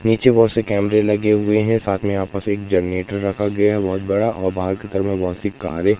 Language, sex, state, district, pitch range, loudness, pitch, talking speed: Hindi, male, Madhya Pradesh, Katni, 95-105 Hz, -19 LUFS, 100 Hz, 230 wpm